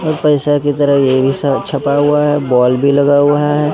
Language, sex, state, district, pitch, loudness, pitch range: Hindi, male, Bihar, Katihar, 145 Hz, -12 LUFS, 140-145 Hz